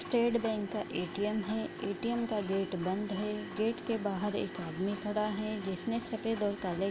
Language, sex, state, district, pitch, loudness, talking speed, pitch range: Hindi, female, Bihar, Bhagalpur, 210 Hz, -34 LUFS, 190 wpm, 195-220 Hz